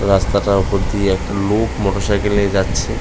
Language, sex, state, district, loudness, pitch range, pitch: Bengali, male, West Bengal, North 24 Parganas, -17 LUFS, 95-105 Hz, 100 Hz